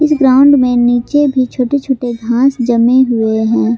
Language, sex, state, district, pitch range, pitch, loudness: Hindi, female, Jharkhand, Palamu, 235-270 Hz, 250 Hz, -11 LUFS